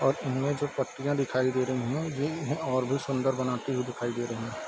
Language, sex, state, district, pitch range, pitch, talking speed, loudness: Hindi, male, Bihar, East Champaran, 125-140 Hz, 130 Hz, 255 wpm, -30 LUFS